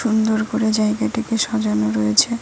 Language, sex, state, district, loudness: Bengali, female, West Bengal, Cooch Behar, -19 LUFS